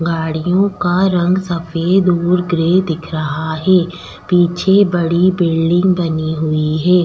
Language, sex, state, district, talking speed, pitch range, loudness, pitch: Hindi, female, Delhi, New Delhi, 130 wpm, 165-180 Hz, -15 LUFS, 175 Hz